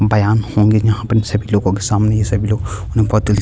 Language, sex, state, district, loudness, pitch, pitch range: Hindi, male, Chhattisgarh, Kabirdham, -16 LUFS, 105 Hz, 105-110 Hz